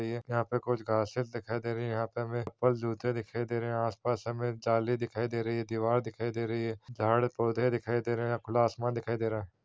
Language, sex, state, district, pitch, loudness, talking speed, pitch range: Hindi, male, Chhattisgarh, Korba, 115 Hz, -32 LUFS, 275 wpm, 115-120 Hz